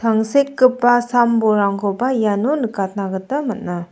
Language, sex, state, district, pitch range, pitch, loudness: Garo, female, Meghalaya, South Garo Hills, 200-255 Hz, 230 Hz, -17 LUFS